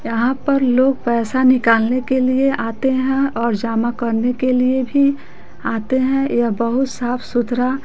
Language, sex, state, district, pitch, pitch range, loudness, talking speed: Hindi, female, Bihar, West Champaran, 255 Hz, 235-265 Hz, -17 LUFS, 160 wpm